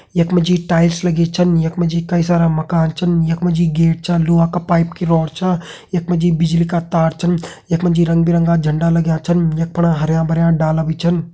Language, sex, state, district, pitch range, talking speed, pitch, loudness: Hindi, male, Uttarakhand, Uttarkashi, 165-175 Hz, 230 wpm, 170 Hz, -16 LUFS